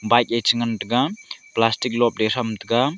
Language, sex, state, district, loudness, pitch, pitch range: Wancho, male, Arunachal Pradesh, Longding, -21 LUFS, 120 Hz, 115-125 Hz